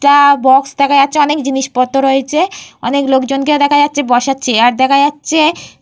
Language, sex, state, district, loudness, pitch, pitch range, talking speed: Bengali, female, Jharkhand, Jamtara, -11 LUFS, 280 Hz, 265-290 Hz, 155 wpm